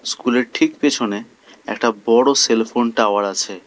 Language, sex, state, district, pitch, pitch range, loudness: Bengali, male, West Bengal, Alipurduar, 115 Hz, 105-125 Hz, -17 LUFS